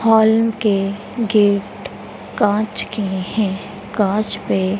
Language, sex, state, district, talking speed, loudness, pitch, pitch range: Hindi, female, Madhya Pradesh, Dhar, 100 wpm, -18 LUFS, 210 Hz, 200-220 Hz